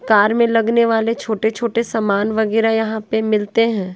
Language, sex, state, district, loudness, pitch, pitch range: Hindi, female, Bihar, West Champaran, -17 LUFS, 225 Hz, 220-230 Hz